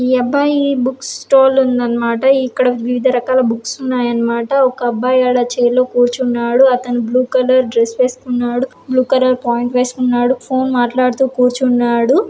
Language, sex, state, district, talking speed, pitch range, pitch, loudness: Telugu, female, Andhra Pradesh, Srikakulam, 150 wpm, 245-260 Hz, 250 Hz, -14 LUFS